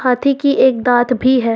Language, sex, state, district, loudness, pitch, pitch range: Hindi, female, Jharkhand, Ranchi, -14 LUFS, 255 Hz, 245-265 Hz